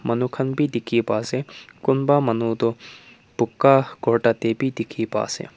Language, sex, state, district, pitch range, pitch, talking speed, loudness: Nagamese, male, Nagaland, Kohima, 115-135 Hz, 120 Hz, 170 wpm, -22 LUFS